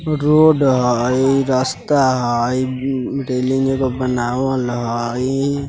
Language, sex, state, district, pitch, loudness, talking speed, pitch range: Bajjika, male, Bihar, Vaishali, 130 Hz, -17 LUFS, 105 wpm, 125-135 Hz